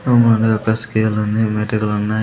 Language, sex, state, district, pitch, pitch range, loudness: Telugu, male, Andhra Pradesh, Sri Satya Sai, 110 Hz, 105-110 Hz, -16 LUFS